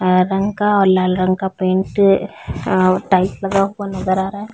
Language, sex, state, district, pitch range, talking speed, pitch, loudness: Hindi, female, Chhattisgarh, Bilaspur, 185-195 Hz, 210 wpm, 190 Hz, -16 LUFS